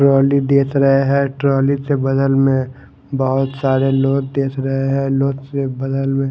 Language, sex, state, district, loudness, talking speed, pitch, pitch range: Hindi, male, Haryana, Jhajjar, -17 LUFS, 180 wpm, 135 Hz, 135-140 Hz